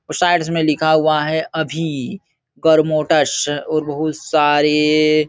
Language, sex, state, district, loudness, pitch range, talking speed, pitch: Hindi, male, Uttar Pradesh, Jalaun, -16 LUFS, 150-160 Hz, 135 wpm, 155 Hz